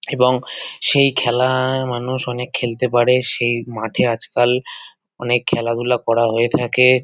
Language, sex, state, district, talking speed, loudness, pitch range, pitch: Bengali, male, West Bengal, North 24 Parganas, 130 wpm, -17 LUFS, 120-130 Hz, 125 Hz